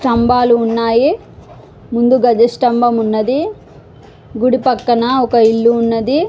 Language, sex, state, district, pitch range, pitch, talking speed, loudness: Telugu, female, Telangana, Karimnagar, 230-255 Hz, 240 Hz, 105 wpm, -13 LUFS